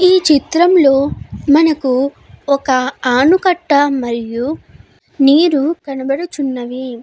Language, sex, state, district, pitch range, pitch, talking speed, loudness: Telugu, female, Andhra Pradesh, Guntur, 260-320 Hz, 280 Hz, 75 wpm, -14 LUFS